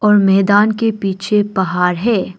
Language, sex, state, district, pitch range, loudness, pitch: Hindi, female, Arunachal Pradesh, Papum Pare, 190-210 Hz, -14 LUFS, 200 Hz